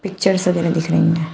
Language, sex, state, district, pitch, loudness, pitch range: Hindi, female, Uttar Pradesh, Shamli, 175 Hz, -17 LUFS, 165-190 Hz